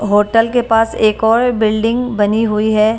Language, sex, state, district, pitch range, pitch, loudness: Hindi, female, Himachal Pradesh, Shimla, 215-230 Hz, 220 Hz, -14 LUFS